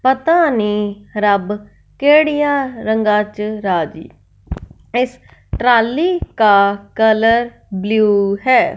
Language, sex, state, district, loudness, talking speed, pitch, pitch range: Hindi, male, Punjab, Fazilka, -15 LUFS, 40 wpm, 215 Hz, 200-255 Hz